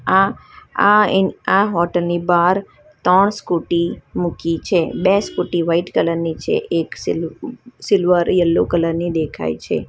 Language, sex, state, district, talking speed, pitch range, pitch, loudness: Gujarati, female, Gujarat, Valsad, 135 wpm, 170-195 Hz, 175 Hz, -18 LUFS